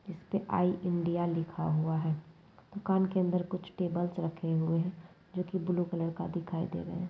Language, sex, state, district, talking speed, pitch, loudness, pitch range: Hindi, female, Bihar, Muzaffarpur, 205 wpm, 175 Hz, -33 LUFS, 165-180 Hz